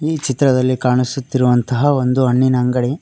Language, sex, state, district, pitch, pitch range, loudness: Kannada, male, Karnataka, Koppal, 130 Hz, 125-135 Hz, -16 LUFS